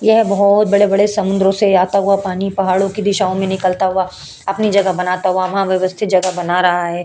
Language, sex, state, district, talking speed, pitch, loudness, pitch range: Hindi, female, Uttar Pradesh, Hamirpur, 215 wpm, 195 Hz, -15 LUFS, 185-200 Hz